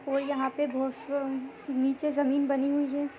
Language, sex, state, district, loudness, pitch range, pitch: Hindi, female, Chhattisgarh, Raigarh, -29 LUFS, 270-285 Hz, 280 Hz